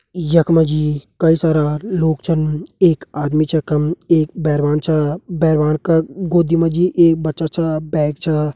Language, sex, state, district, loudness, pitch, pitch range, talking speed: Hindi, male, Uttarakhand, Tehri Garhwal, -16 LUFS, 160 Hz, 150-165 Hz, 175 wpm